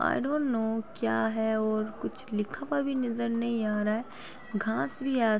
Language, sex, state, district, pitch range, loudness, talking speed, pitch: Hindi, female, Uttar Pradesh, Varanasi, 215-255 Hz, -30 LUFS, 220 wpm, 225 Hz